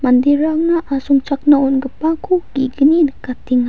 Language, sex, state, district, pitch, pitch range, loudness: Garo, female, Meghalaya, West Garo Hills, 280 Hz, 265-315 Hz, -15 LUFS